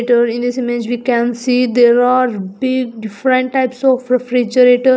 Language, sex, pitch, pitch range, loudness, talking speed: English, female, 250 Hz, 240-255 Hz, -14 LUFS, 145 wpm